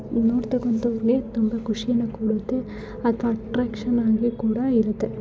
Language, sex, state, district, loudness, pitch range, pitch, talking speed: Kannada, female, Karnataka, Bellary, -23 LUFS, 220-240 Hz, 230 Hz, 125 wpm